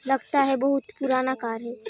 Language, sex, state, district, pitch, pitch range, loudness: Hindi, female, Chhattisgarh, Sarguja, 270 Hz, 255-275 Hz, -25 LUFS